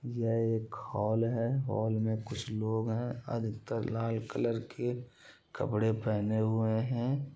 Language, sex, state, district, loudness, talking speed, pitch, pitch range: Hindi, male, Bihar, Gopalganj, -33 LUFS, 140 wpm, 115 Hz, 110-120 Hz